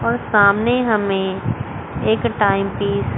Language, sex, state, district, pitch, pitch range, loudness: Hindi, female, Chandigarh, Chandigarh, 195 Hz, 125-205 Hz, -18 LUFS